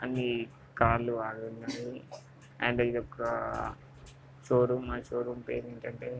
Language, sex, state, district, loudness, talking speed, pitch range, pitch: Telugu, male, Andhra Pradesh, Visakhapatnam, -33 LUFS, 85 wpm, 115-125 Hz, 120 Hz